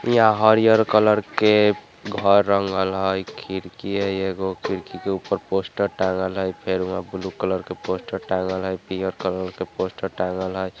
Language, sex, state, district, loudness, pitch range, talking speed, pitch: Hindi, male, Bihar, Vaishali, -22 LUFS, 95-100 Hz, 165 wpm, 95 Hz